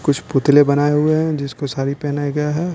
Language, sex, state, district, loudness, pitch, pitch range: Hindi, male, Bihar, Patna, -17 LUFS, 145 Hz, 140-150 Hz